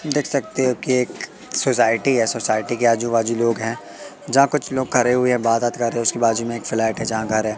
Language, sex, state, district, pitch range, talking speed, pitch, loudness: Hindi, male, Madhya Pradesh, Katni, 115-130 Hz, 245 wpm, 115 Hz, -20 LUFS